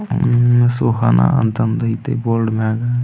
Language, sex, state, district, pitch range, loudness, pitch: Kannada, male, Karnataka, Belgaum, 110-120 Hz, -16 LUFS, 115 Hz